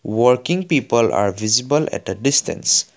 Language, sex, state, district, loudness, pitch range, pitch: English, male, Assam, Kamrup Metropolitan, -18 LUFS, 110-145 Hz, 125 Hz